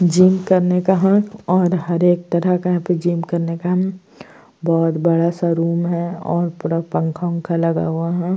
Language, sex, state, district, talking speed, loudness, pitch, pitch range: Hindi, female, Uttar Pradesh, Jyotiba Phule Nagar, 195 wpm, -18 LUFS, 175 Hz, 170-180 Hz